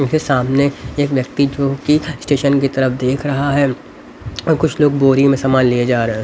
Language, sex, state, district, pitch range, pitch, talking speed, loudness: Hindi, male, Haryana, Rohtak, 130-145 Hz, 140 Hz, 210 wpm, -15 LUFS